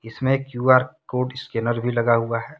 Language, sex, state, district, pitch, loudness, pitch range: Hindi, male, Jharkhand, Deoghar, 125 Hz, -22 LUFS, 115-130 Hz